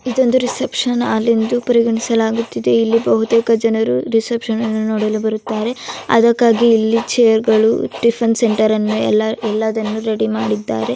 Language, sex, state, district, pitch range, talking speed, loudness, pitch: Kannada, female, Karnataka, Dharwad, 220-235 Hz, 115 wpm, -15 LUFS, 225 Hz